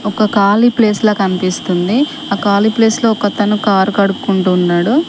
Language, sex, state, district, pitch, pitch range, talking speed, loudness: Telugu, female, Telangana, Mahabubabad, 205 Hz, 195-225 Hz, 140 wpm, -13 LUFS